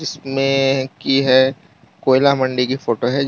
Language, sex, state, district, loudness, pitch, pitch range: Hindi, male, Gujarat, Valsad, -17 LUFS, 135 Hz, 130-135 Hz